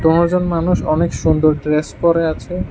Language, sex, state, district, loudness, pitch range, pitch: Bengali, male, Tripura, West Tripura, -16 LUFS, 155-170 Hz, 165 Hz